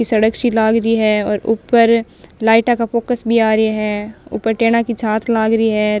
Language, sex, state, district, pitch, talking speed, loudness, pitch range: Rajasthani, female, Rajasthan, Nagaur, 225 Hz, 220 wpm, -15 LUFS, 215-230 Hz